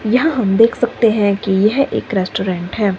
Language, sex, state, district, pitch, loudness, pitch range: Hindi, female, Himachal Pradesh, Shimla, 210 Hz, -15 LUFS, 195-230 Hz